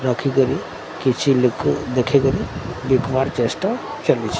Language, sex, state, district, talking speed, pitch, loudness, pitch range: Odia, male, Odisha, Sambalpur, 110 wpm, 130 Hz, -20 LUFS, 125-135 Hz